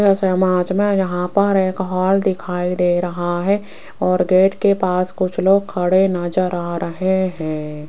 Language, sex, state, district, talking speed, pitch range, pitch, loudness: Hindi, female, Rajasthan, Jaipur, 160 wpm, 180-190 Hz, 185 Hz, -18 LUFS